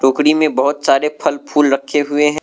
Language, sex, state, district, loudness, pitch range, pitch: Hindi, male, Arunachal Pradesh, Lower Dibang Valley, -15 LUFS, 140-150 Hz, 145 Hz